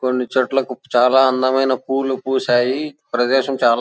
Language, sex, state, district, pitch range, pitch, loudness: Telugu, male, Andhra Pradesh, Anantapur, 125-135 Hz, 130 Hz, -17 LUFS